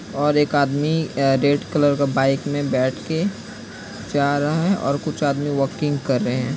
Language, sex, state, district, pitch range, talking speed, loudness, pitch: Hindi, male, Bihar, Kishanganj, 135-150 Hz, 185 wpm, -20 LUFS, 145 Hz